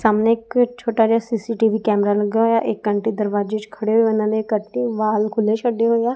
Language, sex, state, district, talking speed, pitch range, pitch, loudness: Punjabi, female, Punjab, Kapurthala, 215 wpm, 215-230 Hz, 220 Hz, -19 LUFS